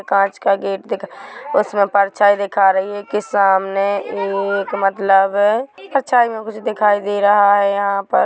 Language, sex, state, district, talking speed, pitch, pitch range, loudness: Hindi, male, Chhattisgarh, Rajnandgaon, 155 wpm, 200 Hz, 195-205 Hz, -16 LUFS